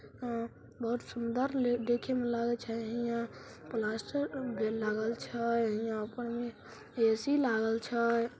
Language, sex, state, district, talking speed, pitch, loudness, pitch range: Maithili, female, Bihar, Samastipur, 130 wpm, 235 Hz, -34 LUFS, 225-240 Hz